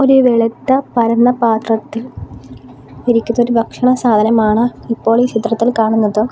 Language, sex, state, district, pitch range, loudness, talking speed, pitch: Malayalam, female, Kerala, Kollam, 220-240 Hz, -14 LUFS, 105 wpm, 230 Hz